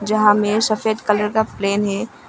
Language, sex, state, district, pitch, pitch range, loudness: Hindi, female, Arunachal Pradesh, Longding, 210 Hz, 205-215 Hz, -18 LUFS